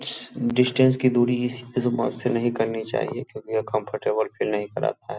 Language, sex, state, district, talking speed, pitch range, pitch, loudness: Hindi, male, Bihar, Purnia, 160 wpm, 110-125 Hz, 120 Hz, -24 LUFS